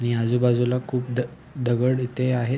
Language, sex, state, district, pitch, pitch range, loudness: Marathi, male, Maharashtra, Sindhudurg, 125 Hz, 120-125 Hz, -24 LUFS